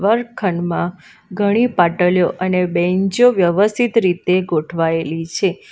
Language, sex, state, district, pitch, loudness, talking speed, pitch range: Gujarati, female, Gujarat, Valsad, 180 Hz, -17 LUFS, 105 wpm, 175-205 Hz